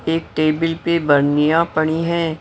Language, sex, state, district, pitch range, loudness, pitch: Hindi, female, Maharashtra, Mumbai Suburban, 155-165 Hz, -17 LUFS, 160 Hz